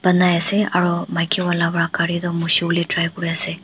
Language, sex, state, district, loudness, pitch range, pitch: Nagamese, female, Nagaland, Dimapur, -17 LUFS, 170-180 Hz, 170 Hz